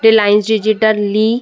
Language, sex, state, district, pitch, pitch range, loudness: Hindi, female, Uttar Pradesh, Muzaffarnagar, 215 Hz, 210-220 Hz, -13 LUFS